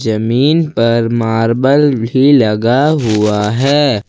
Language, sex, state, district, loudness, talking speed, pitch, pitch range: Hindi, male, Jharkhand, Ranchi, -12 LUFS, 105 wpm, 120 Hz, 115-140 Hz